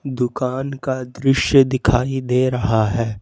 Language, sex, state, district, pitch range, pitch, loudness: Hindi, male, Jharkhand, Ranchi, 120-135 Hz, 130 Hz, -18 LUFS